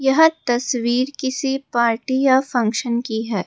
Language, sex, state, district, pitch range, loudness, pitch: Hindi, female, Rajasthan, Jaipur, 235-270 Hz, -19 LUFS, 250 Hz